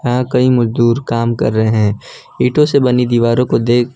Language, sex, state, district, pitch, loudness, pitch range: Hindi, male, Gujarat, Valsad, 120 Hz, -13 LUFS, 115-125 Hz